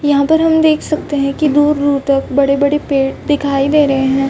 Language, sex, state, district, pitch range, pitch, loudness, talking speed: Hindi, female, Chhattisgarh, Raigarh, 275-295 Hz, 285 Hz, -13 LUFS, 210 wpm